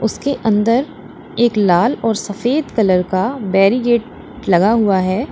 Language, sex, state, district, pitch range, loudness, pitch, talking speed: Hindi, female, Uttar Pradesh, Lalitpur, 195-240 Hz, -15 LUFS, 220 Hz, 135 wpm